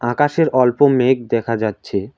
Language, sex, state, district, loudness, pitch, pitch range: Bengali, male, West Bengal, Alipurduar, -16 LUFS, 125 Hz, 115-140 Hz